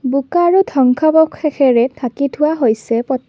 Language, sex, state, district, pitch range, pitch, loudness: Assamese, female, Assam, Kamrup Metropolitan, 250-310 Hz, 275 Hz, -14 LUFS